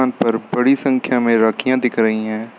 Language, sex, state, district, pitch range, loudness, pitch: Hindi, male, Uttar Pradesh, Lucknow, 110-130 Hz, -17 LUFS, 120 Hz